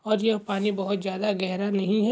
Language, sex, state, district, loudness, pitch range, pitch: Hindi, male, Andhra Pradesh, Krishna, -26 LUFS, 195-215 Hz, 205 Hz